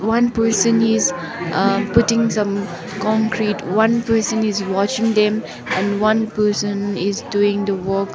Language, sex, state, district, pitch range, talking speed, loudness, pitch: English, female, Sikkim, Gangtok, 200-225 Hz, 140 wpm, -18 LUFS, 210 Hz